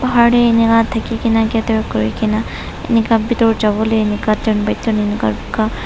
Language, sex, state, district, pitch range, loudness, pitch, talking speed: Nagamese, female, Nagaland, Dimapur, 215-230 Hz, -15 LUFS, 225 Hz, 205 wpm